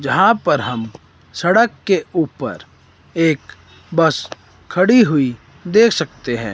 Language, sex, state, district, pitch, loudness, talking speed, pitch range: Hindi, male, Himachal Pradesh, Shimla, 160 Hz, -16 LUFS, 120 wpm, 125-190 Hz